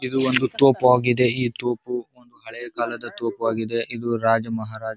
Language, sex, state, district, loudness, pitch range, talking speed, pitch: Kannada, male, Karnataka, Bijapur, -22 LUFS, 115-125 Hz, 170 wpm, 120 Hz